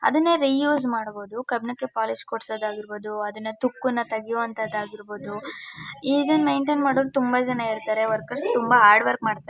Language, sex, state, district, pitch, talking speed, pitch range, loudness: Kannada, female, Karnataka, Mysore, 230 Hz, 145 wpm, 215-260 Hz, -23 LUFS